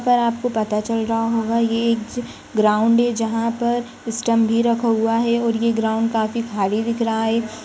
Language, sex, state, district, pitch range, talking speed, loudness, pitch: Hindi, female, Uttar Pradesh, Jyotiba Phule Nagar, 225-235 Hz, 195 wpm, -20 LUFS, 230 Hz